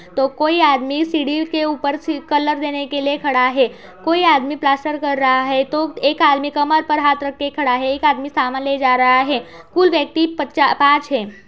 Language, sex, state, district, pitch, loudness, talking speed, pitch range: Hindi, female, Uttar Pradesh, Budaun, 285 Hz, -17 LUFS, 215 wpm, 270-300 Hz